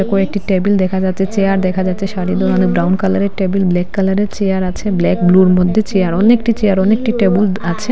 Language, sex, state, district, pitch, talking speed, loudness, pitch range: Bengali, female, Assam, Hailakandi, 190 Hz, 190 wpm, -14 LUFS, 185-200 Hz